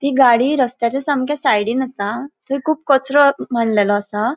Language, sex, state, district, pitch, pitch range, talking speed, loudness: Konkani, female, Goa, North and South Goa, 260 Hz, 230-280 Hz, 150 wpm, -17 LUFS